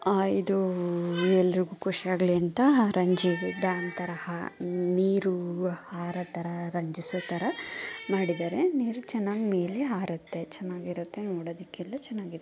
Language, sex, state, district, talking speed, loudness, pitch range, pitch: Kannada, female, Karnataka, Mysore, 100 wpm, -29 LUFS, 175-195 Hz, 180 Hz